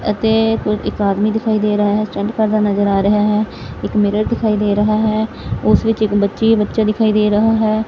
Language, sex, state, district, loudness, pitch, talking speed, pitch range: Punjabi, female, Punjab, Fazilka, -16 LUFS, 215 Hz, 215 wpm, 210-220 Hz